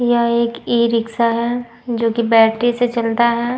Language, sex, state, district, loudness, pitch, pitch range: Hindi, female, Uttar Pradesh, Muzaffarnagar, -17 LUFS, 235 Hz, 230-240 Hz